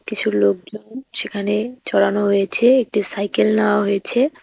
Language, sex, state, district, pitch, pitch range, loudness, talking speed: Bengali, female, West Bengal, Cooch Behar, 210 Hz, 200-235 Hz, -17 LUFS, 120 wpm